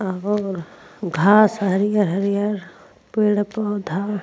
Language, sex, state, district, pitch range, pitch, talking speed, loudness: Hindi, female, Bihar, Vaishali, 190-210 Hz, 205 Hz, 70 wpm, -20 LUFS